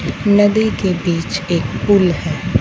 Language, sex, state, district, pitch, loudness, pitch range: Hindi, female, Punjab, Fazilka, 180 Hz, -16 LUFS, 170-205 Hz